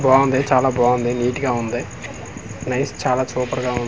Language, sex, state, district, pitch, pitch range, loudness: Telugu, male, Andhra Pradesh, Manyam, 125 Hz, 120-130 Hz, -19 LUFS